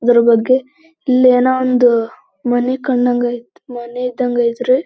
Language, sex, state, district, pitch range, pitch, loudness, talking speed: Kannada, female, Karnataka, Belgaum, 240-255 Hz, 250 Hz, -15 LUFS, 135 wpm